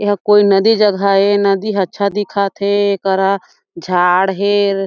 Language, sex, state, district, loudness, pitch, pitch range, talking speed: Chhattisgarhi, female, Chhattisgarh, Jashpur, -14 LUFS, 200 Hz, 195-205 Hz, 160 wpm